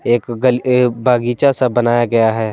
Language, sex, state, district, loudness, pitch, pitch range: Hindi, male, Jharkhand, Deoghar, -14 LUFS, 120 Hz, 120-125 Hz